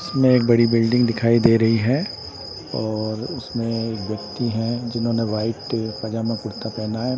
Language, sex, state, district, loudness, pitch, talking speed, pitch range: Hindi, male, Bihar, Patna, -21 LUFS, 115 Hz, 160 wpm, 110-120 Hz